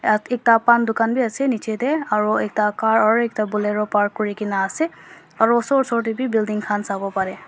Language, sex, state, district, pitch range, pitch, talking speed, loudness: Nagamese, female, Nagaland, Dimapur, 210-235 Hz, 220 Hz, 200 wpm, -20 LUFS